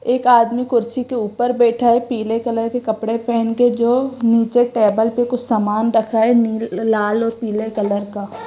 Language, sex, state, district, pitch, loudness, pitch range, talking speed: Hindi, female, Gujarat, Gandhinagar, 230 Hz, -17 LUFS, 220-240 Hz, 190 wpm